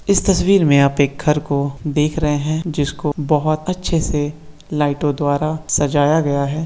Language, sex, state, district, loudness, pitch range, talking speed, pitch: Hindi, male, Uttar Pradesh, Hamirpur, -18 LUFS, 145-155 Hz, 170 wpm, 150 Hz